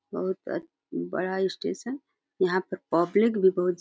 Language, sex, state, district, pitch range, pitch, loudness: Hindi, female, Uttar Pradesh, Deoria, 185-230 Hz, 190 Hz, -27 LUFS